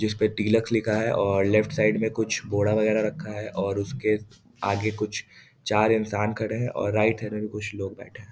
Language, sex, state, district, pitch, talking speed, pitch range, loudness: Hindi, male, Bihar, East Champaran, 105 Hz, 230 wpm, 105-110 Hz, -25 LUFS